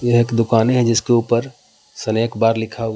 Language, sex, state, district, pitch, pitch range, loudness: Hindi, male, Jharkhand, Palamu, 115 Hz, 115-120 Hz, -17 LUFS